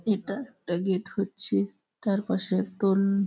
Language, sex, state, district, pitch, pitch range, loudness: Bengali, male, West Bengal, Malda, 195 Hz, 185-205 Hz, -28 LUFS